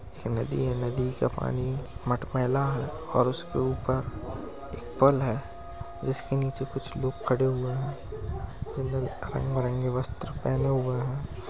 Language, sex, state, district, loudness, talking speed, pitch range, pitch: Hindi, male, Uttar Pradesh, Muzaffarnagar, -29 LUFS, 140 wpm, 125-135 Hz, 130 Hz